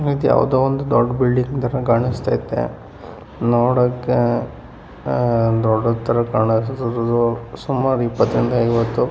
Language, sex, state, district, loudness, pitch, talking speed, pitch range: Kannada, male, Karnataka, Mysore, -18 LUFS, 120 Hz, 105 wpm, 115-125 Hz